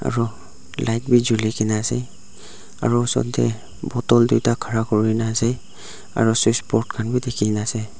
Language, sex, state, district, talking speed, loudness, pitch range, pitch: Nagamese, male, Nagaland, Dimapur, 150 wpm, -20 LUFS, 110-120 Hz, 115 Hz